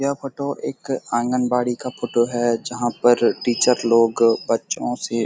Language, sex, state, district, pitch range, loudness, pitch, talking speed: Hindi, male, Uttar Pradesh, Etah, 115-125 Hz, -20 LUFS, 120 Hz, 160 wpm